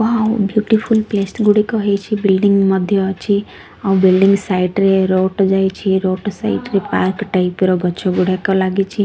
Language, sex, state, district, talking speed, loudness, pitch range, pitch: Odia, female, Odisha, Sambalpur, 150 wpm, -15 LUFS, 190-210 Hz, 195 Hz